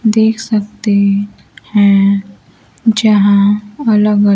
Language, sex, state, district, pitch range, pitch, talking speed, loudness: Hindi, female, Bihar, Kaimur, 200-215 Hz, 205 Hz, 85 wpm, -12 LUFS